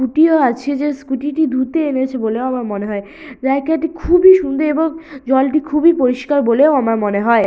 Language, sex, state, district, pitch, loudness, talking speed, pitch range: Bengali, female, West Bengal, Purulia, 280 Hz, -15 LUFS, 185 wpm, 255-310 Hz